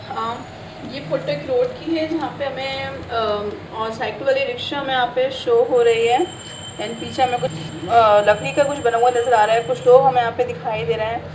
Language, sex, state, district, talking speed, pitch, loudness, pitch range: Hindi, female, Bihar, Jamui, 235 wpm, 250 Hz, -19 LUFS, 225-290 Hz